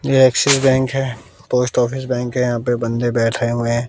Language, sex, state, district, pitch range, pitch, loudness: Hindi, male, Bihar, West Champaran, 120-130 Hz, 125 Hz, -17 LUFS